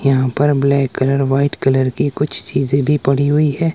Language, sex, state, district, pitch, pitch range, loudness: Hindi, male, Himachal Pradesh, Shimla, 140 Hz, 135-145 Hz, -16 LUFS